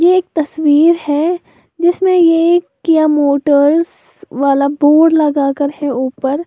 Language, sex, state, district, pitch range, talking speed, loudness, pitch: Hindi, female, Uttar Pradesh, Lalitpur, 285-335 Hz, 110 wpm, -12 LUFS, 310 Hz